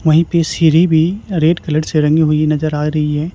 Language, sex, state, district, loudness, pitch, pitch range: Hindi, male, Chhattisgarh, Raipur, -14 LUFS, 160 Hz, 155-165 Hz